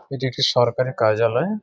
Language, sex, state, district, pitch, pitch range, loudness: Bengali, male, West Bengal, Jhargram, 130 Hz, 120-140 Hz, -20 LUFS